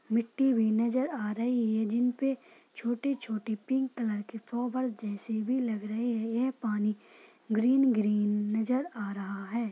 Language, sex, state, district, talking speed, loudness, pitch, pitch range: Hindi, female, Maharashtra, Solapur, 160 wpm, -30 LUFS, 230 Hz, 215-255 Hz